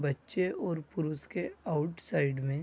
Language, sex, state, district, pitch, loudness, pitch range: Hindi, male, Maharashtra, Aurangabad, 155 Hz, -34 LUFS, 140-170 Hz